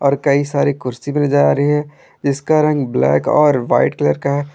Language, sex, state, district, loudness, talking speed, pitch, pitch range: Hindi, male, Jharkhand, Garhwa, -16 LUFS, 225 wpm, 140 Hz, 130-145 Hz